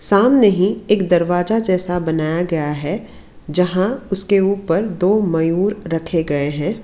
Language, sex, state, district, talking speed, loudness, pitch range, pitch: Hindi, female, Karnataka, Bangalore, 140 wpm, -17 LUFS, 165-200 Hz, 185 Hz